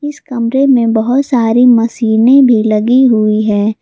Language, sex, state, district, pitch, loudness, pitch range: Hindi, female, Jharkhand, Garhwa, 235 Hz, -10 LUFS, 220-255 Hz